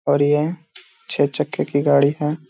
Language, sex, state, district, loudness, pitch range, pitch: Hindi, male, Bihar, Gaya, -19 LUFS, 140-150 Hz, 145 Hz